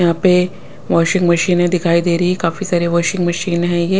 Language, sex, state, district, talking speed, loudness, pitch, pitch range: Hindi, female, Punjab, Pathankot, 225 wpm, -15 LUFS, 175 Hz, 170-180 Hz